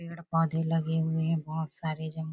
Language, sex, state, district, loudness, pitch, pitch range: Hindi, female, Chhattisgarh, Bilaspur, -30 LUFS, 160 Hz, 160-165 Hz